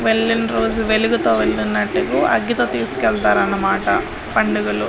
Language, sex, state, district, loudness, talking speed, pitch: Telugu, female, Andhra Pradesh, Guntur, -17 LUFS, 100 wpm, 115 Hz